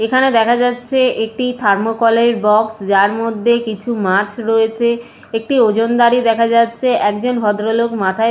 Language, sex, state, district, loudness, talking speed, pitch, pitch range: Bengali, female, West Bengal, Jalpaiguri, -15 LUFS, 135 wpm, 230 Hz, 220-235 Hz